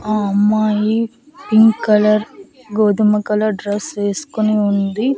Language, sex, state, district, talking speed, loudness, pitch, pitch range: Telugu, female, Andhra Pradesh, Annamaya, 105 wpm, -16 LUFS, 215 Hz, 210-220 Hz